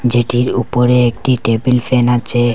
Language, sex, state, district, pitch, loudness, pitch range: Bengali, male, Assam, Hailakandi, 125 Hz, -14 LUFS, 120-125 Hz